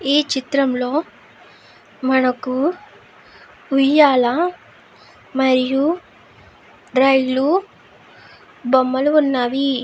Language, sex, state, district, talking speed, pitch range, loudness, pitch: Telugu, female, Andhra Pradesh, Chittoor, 50 wpm, 255-295 Hz, -17 LUFS, 270 Hz